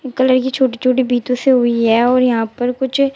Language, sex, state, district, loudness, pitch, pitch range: Hindi, female, Uttar Pradesh, Shamli, -15 LUFS, 255 Hz, 245-260 Hz